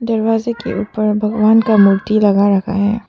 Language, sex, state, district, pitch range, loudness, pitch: Hindi, female, Arunachal Pradesh, Papum Pare, 205-225 Hz, -14 LUFS, 215 Hz